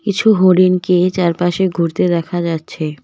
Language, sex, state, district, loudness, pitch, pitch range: Bengali, female, West Bengal, Cooch Behar, -15 LUFS, 175 Hz, 170-185 Hz